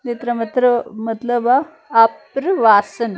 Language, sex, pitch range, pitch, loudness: Punjabi, female, 225-250 Hz, 240 Hz, -16 LUFS